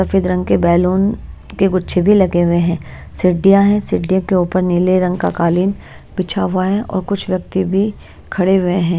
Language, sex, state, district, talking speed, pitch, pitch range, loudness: Hindi, female, Bihar, Patna, 195 wpm, 185 Hz, 180-195 Hz, -15 LUFS